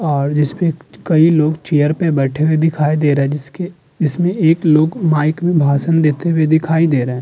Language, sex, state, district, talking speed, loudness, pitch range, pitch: Hindi, male, Uttar Pradesh, Muzaffarnagar, 215 wpm, -15 LUFS, 145-165 Hz, 155 Hz